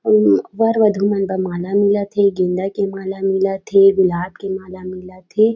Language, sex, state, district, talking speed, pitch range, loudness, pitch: Chhattisgarhi, female, Chhattisgarh, Raigarh, 195 wpm, 185-200 Hz, -17 LUFS, 195 Hz